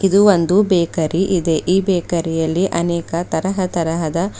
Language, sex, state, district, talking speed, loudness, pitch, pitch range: Kannada, female, Karnataka, Bidar, 125 wpm, -17 LUFS, 175 Hz, 165-190 Hz